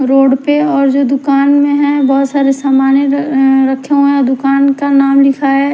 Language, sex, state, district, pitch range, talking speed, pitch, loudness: Hindi, female, Haryana, Charkhi Dadri, 270-280 Hz, 210 wpm, 275 Hz, -10 LUFS